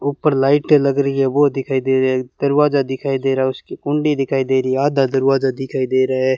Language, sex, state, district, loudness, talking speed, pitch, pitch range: Hindi, male, Rajasthan, Bikaner, -17 LUFS, 255 wpm, 135 Hz, 130-140 Hz